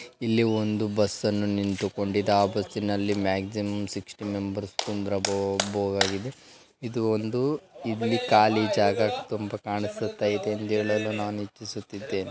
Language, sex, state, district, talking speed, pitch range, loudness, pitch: Kannada, male, Karnataka, Bellary, 110 wpm, 100-110 Hz, -27 LUFS, 105 Hz